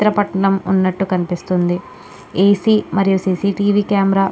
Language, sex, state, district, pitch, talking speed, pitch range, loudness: Telugu, female, Andhra Pradesh, Krishna, 195 Hz, 85 wpm, 185-200 Hz, -16 LUFS